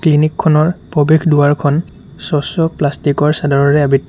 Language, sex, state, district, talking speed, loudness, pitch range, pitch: Assamese, male, Assam, Sonitpur, 130 wpm, -13 LUFS, 145-155 Hz, 150 Hz